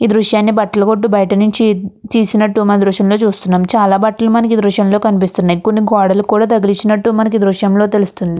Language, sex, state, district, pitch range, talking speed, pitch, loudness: Telugu, female, Andhra Pradesh, Chittoor, 200-220 Hz, 170 wpm, 210 Hz, -12 LUFS